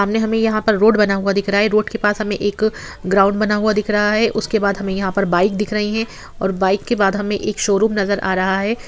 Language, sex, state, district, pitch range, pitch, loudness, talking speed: Hindi, female, Bihar, Sitamarhi, 200-215 Hz, 210 Hz, -17 LUFS, 290 wpm